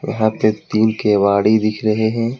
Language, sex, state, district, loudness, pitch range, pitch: Hindi, male, Jharkhand, Deoghar, -16 LUFS, 105-110 Hz, 110 Hz